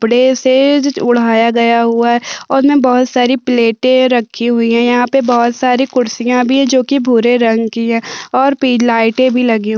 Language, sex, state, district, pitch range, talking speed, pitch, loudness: Hindi, female, Chhattisgarh, Sukma, 235-260 Hz, 190 wpm, 245 Hz, -12 LUFS